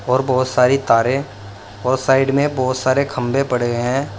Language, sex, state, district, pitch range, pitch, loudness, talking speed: Hindi, male, Uttar Pradesh, Saharanpur, 120-135 Hz, 130 Hz, -17 LUFS, 160 wpm